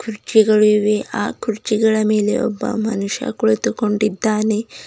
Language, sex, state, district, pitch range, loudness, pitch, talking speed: Kannada, female, Karnataka, Bidar, 210-220 Hz, -18 LUFS, 215 Hz, 100 wpm